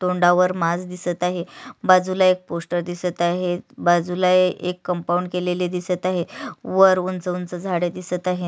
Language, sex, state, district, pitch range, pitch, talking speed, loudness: Marathi, female, Maharashtra, Sindhudurg, 175-180 Hz, 180 Hz, 150 wpm, -21 LUFS